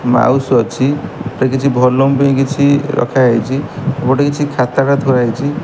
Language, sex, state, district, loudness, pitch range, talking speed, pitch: Odia, male, Odisha, Malkangiri, -13 LUFS, 125-140 Hz, 150 wpm, 135 Hz